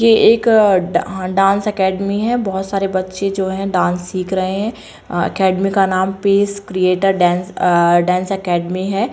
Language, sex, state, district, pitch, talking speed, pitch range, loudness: Kumaoni, female, Uttarakhand, Uttarkashi, 190 Hz, 160 wpm, 185-200 Hz, -16 LUFS